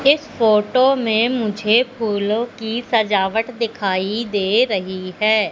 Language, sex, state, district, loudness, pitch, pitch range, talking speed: Hindi, female, Madhya Pradesh, Katni, -18 LUFS, 220 Hz, 205-235 Hz, 120 wpm